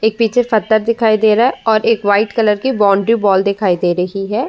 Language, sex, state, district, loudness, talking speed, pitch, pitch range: Hindi, female, Uttar Pradesh, Muzaffarnagar, -14 LUFS, 225 wpm, 215 Hz, 200-225 Hz